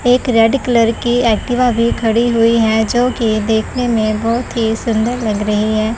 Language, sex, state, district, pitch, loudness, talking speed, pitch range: Hindi, female, Chandigarh, Chandigarh, 230 Hz, -14 LUFS, 190 wpm, 220-240 Hz